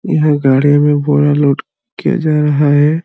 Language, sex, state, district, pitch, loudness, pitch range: Hindi, male, Jharkhand, Sahebganj, 145 Hz, -12 LUFS, 145-150 Hz